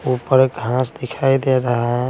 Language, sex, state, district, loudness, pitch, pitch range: Hindi, male, Bihar, Patna, -18 LUFS, 130 Hz, 125-135 Hz